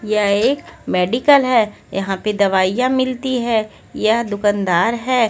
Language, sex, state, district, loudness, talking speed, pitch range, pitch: Hindi, female, Haryana, Rohtak, -17 LUFS, 135 wpm, 205-250 Hz, 220 Hz